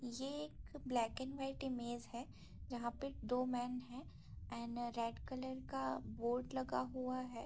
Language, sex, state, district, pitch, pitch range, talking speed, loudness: Hindi, female, Bihar, Saharsa, 245 Hz, 235-260 Hz, 160 wpm, -44 LUFS